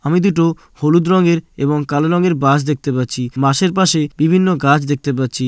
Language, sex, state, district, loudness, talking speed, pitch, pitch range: Bengali, male, West Bengal, Jalpaiguri, -15 LUFS, 175 wpm, 150 Hz, 140-170 Hz